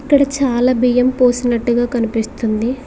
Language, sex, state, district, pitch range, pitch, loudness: Telugu, female, Telangana, Mahabubabad, 240-260 Hz, 245 Hz, -15 LUFS